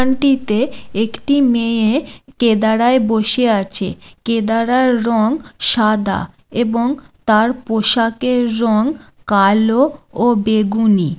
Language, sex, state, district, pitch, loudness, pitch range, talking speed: Bengali, female, West Bengal, Jalpaiguri, 230 Hz, -15 LUFS, 215-250 Hz, 90 wpm